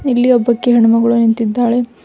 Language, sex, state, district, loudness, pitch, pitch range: Kannada, female, Karnataka, Bidar, -12 LUFS, 235 Hz, 230-245 Hz